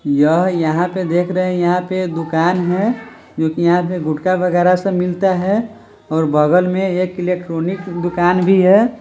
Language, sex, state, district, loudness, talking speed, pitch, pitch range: Hindi, male, Bihar, Sitamarhi, -16 LUFS, 180 wpm, 180 Hz, 170-185 Hz